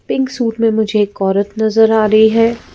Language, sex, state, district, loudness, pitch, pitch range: Hindi, female, Madhya Pradesh, Bhopal, -13 LUFS, 220 Hz, 215-230 Hz